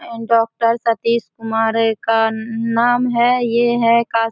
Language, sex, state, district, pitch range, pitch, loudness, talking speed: Hindi, female, Bihar, Samastipur, 225-235 Hz, 230 Hz, -17 LUFS, 155 wpm